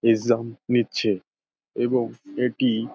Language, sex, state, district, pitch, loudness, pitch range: Bengali, male, West Bengal, Dakshin Dinajpur, 120 Hz, -24 LUFS, 115-125 Hz